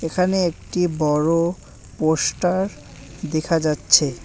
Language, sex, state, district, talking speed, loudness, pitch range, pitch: Bengali, male, West Bengal, Alipurduar, 85 wpm, -20 LUFS, 150-180 Hz, 165 Hz